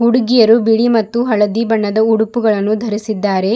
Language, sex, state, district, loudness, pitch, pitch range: Kannada, female, Karnataka, Bidar, -14 LUFS, 220 Hz, 215-230 Hz